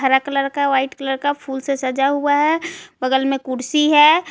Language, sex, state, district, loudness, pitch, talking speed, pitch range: Hindi, female, Jharkhand, Ranchi, -18 LUFS, 275 Hz, 210 wpm, 265-290 Hz